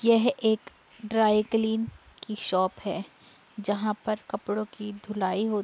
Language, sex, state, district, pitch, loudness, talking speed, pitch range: Hindi, female, Uttar Pradesh, Budaun, 215 Hz, -28 LUFS, 150 wpm, 205-220 Hz